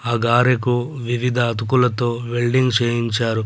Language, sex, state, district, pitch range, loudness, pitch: Telugu, male, Telangana, Adilabad, 120-125 Hz, -19 LUFS, 120 Hz